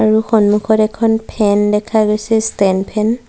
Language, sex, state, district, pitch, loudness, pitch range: Assamese, female, Assam, Sonitpur, 215 Hz, -14 LUFS, 210-220 Hz